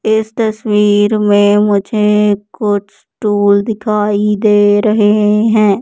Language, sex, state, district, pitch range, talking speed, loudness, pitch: Hindi, female, Madhya Pradesh, Katni, 205-215 Hz, 95 wpm, -12 LUFS, 210 Hz